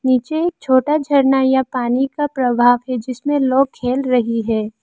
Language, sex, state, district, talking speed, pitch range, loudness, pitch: Hindi, female, Arunachal Pradesh, Lower Dibang Valley, 175 wpm, 245-275 Hz, -17 LUFS, 260 Hz